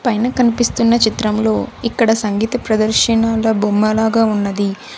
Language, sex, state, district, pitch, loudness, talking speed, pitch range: Telugu, female, Andhra Pradesh, Sri Satya Sai, 225 Hz, -15 LUFS, 95 wpm, 215-235 Hz